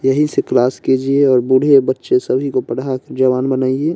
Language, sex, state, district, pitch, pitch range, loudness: Hindi, male, Bihar, West Champaran, 130 Hz, 130-140 Hz, -15 LUFS